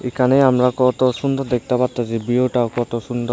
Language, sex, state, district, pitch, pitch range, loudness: Bengali, male, Tripura, Unakoti, 125 Hz, 120-130 Hz, -18 LUFS